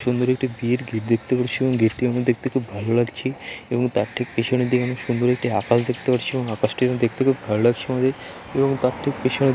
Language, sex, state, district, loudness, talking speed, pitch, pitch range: Bengali, male, West Bengal, Dakshin Dinajpur, -22 LUFS, 235 wpm, 125 Hz, 120-130 Hz